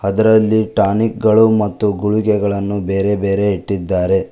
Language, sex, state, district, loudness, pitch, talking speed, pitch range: Kannada, male, Karnataka, Koppal, -15 LUFS, 100 Hz, 95 wpm, 100-110 Hz